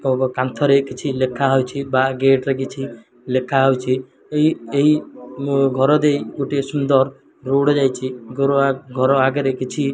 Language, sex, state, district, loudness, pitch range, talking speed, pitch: Odia, male, Odisha, Malkangiri, -18 LUFS, 130-140 Hz, 140 wpm, 135 Hz